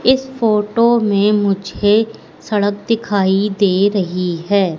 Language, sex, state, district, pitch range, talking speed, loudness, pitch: Hindi, female, Madhya Pradesh, Katni, 195-225 Hz, 115 wpm, -16 LUFS, 205 Hz